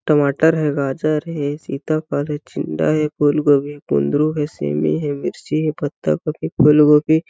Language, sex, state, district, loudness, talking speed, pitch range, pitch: Hindi, male, Chhattisgarh, Balrampur, -18 LUFS, 155 wpm, 145-155 Hz, 150 Hz